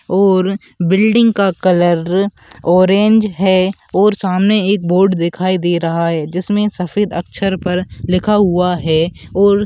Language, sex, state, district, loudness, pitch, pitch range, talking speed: Bhojpuri, male, Uttar Pradesh, Gorakhpur, -14 LUFS, 185 Hz, 175-200 Hz, 135 wpm